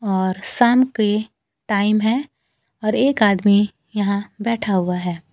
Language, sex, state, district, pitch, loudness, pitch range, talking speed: Hindi, female, Bihar, Kaimur, 210 Hz, -19 LUFS, 195-225 Hz, 135 wpm